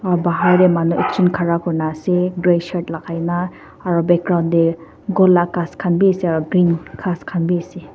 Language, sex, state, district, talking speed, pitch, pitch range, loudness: Nagamese, female, Nagaland, Dimapur, 205 wpm, 175 Hz, 170-180 Hz, -17 LUFS